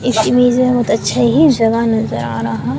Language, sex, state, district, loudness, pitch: Hindi, male, Chhattisgarh, Sukma, -13 LUFS, 230 Hz